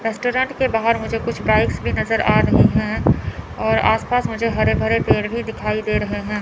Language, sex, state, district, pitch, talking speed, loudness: Hindi, male, Chandigarh, Chandigarh, 225 Hz, 215 wpm, -19 LUFS